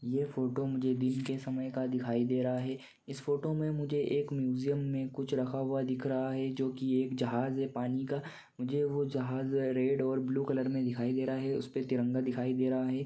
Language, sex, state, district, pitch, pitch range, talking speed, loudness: Hindi, male, Maharashtra, Pune, 130 Hz, 130-135 Hz, 220 wpm, -33 LUFS